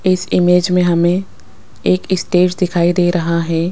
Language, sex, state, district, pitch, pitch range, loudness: Hindi, female, Rajasthan, Jaipur, 175 Hz, 165-180 Hz, -15 LUFS